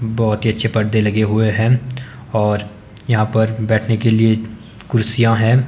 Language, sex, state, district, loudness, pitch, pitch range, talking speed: Hindi, male, Himachal Pradesh, Shimla, -16 LUFS, 110 Hz, 110-115 Hz, 160 wpm